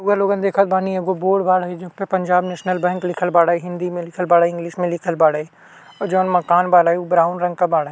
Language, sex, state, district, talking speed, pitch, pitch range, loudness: Bhojpuri, male, Uttar Pradesh, Ghazipur, 240 wpm, 180 Hz, 175-185 Hz, -18 LUFS